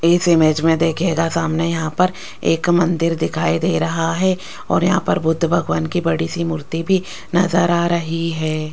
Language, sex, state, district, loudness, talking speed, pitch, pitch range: Hindi, female, Rajasthan, Jaipur, -18 LUFS, 185 wpm, 165 Hz, 165-175 Hz